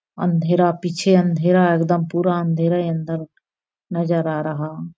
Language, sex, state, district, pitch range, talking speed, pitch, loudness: Maithili, female, Bihar, Araria, 165-175 Hz, 120 wpm, 170 Hz, -19 LUFS